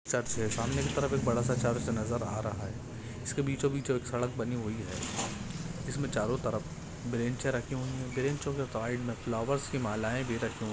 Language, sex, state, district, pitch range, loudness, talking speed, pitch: Hindi, male, Maharashtra, Nagpur, 115-135 Hz, -33 LUFS, 200 wpm, 120 Hz